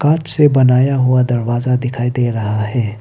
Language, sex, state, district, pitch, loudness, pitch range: Hindi, male, Arunachal Pradesh, Papum Pare, 125 Hz, -15 LUFS, 120-130 Hz